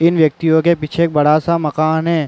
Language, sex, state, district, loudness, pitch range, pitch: Hindi, male, Uttar Pradesh, Varanasi, -15 LUFS, 150-170 Hz, 160 Hz